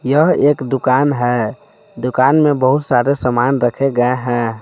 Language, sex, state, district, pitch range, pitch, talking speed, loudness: Hindi, male, Jharkhand, Palamu, 120-140 Hz, 130 Hz, 155 wpm, -15 LUFS